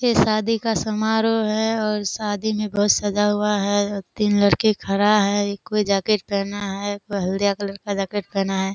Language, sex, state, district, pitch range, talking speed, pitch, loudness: Hindi, female, Bihar, Kishanganj, 200-215 Hz, 185 wpm, 205 Hz, -21 LUFS